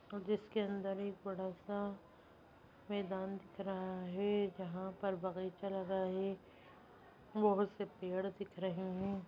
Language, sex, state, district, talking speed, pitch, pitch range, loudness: Hindi, female, Bihar, Vaishali, 125 wpm, 195 Hz, 190-200 Hz, -41 LUFS